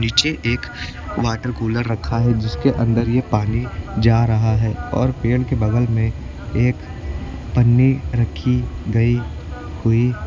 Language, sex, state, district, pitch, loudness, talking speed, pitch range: Hindi, male, Uttar Pradesh, Lucknow, 115 Hz, -19 LUFS, 140 wpm, 105-120 Hz